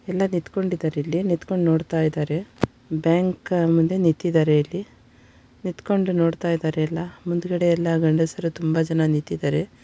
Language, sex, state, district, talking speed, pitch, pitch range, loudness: Kannada, female, Karnataka, Shimoga, 130 wpm, 165 Hz, 160-180 Hz, -22 LUFS